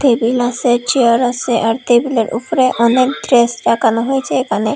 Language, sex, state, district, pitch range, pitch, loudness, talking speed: Bengali, female, Tripura, Unakoti, 235-255 Hz, 245 Hz, -14 LUFS, 150 wpm